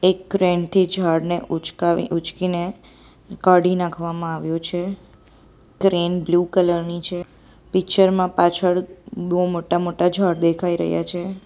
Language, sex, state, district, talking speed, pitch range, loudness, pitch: Gujarati, female, Gujarat, Valsad, 125 wpm, 170-185 Hz, -20 LUFS, 175 Hz